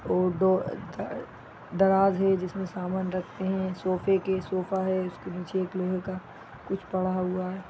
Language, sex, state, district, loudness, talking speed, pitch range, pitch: Hindi, female, Bihar, East Champaran, -28 LUFS, 170 wpm, 185-190 Hz, 185 Hz